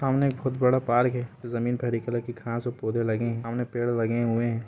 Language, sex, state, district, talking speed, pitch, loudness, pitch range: Hindi, male, Jharkhand, Sahebganj, 255 wpm, 120 Hz, -27 LUFS, 115-125 Hz